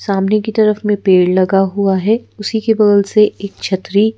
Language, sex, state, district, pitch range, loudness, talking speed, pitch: Hindi, female, Madhya Pradesh, Bhopal, 195-215 Hz, -14 LUFS, 200 wpm, 205 Hz